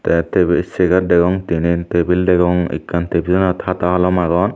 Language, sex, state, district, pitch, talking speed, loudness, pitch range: Chakma, male, Tripura, Dhalai, 90 Hz, 185 wpm, -16 LUFS, 85-90 Hz